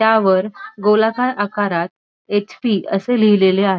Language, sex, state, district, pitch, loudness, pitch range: Marathi, female, Maharashtra, Dhule, 205 Hz, -17 LUFS, 195-220 Hz